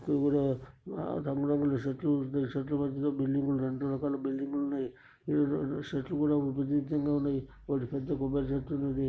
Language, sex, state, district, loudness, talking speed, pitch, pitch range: Telugu, male, Andhra Pradesh, Srikakulam, -32 LUFS, 165 wpm, 140 Hz, 135-145 Hz